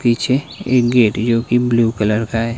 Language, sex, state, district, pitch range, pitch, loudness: Hindi, male, Himachal Pradesh, Shimla, 115-120 Hz, 115 Hz, -16 LUFS